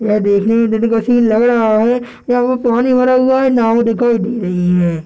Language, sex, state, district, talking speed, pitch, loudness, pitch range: Hindi, male, Bihar, Darbhanga, 235 wpm, 230 Hz, -13 LUFS, 220-245 Hz